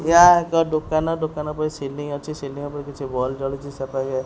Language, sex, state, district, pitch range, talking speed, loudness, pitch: Odia, male, Odisha, Khordha, 135-155 Hz, 210 wpm, -22 LUFS, 145 Hz